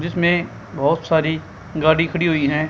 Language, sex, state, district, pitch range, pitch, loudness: Hindi, female, Haryana, Charkhi Dadri, 155-170 Hz, 160 Hz, -19 LUFS